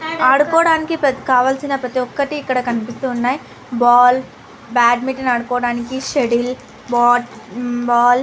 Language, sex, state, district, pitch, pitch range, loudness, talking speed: Telugu, female, Andhra Pradesh, Anantapur, 250 Hz, 240-270 Hz, -16 LUFS, 110 wpm